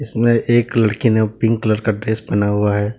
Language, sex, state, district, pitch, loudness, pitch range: Hindi, male, Jharkhand, Deoghar, 110 Hz, -17 LUFS, 105-115 Hz